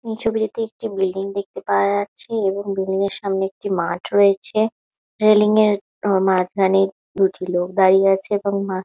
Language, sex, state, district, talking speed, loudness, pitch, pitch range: Bengali, female, West Bengal, Malda, 165 wpm, -19 LUFS, 195 Hz, 190-210 Hz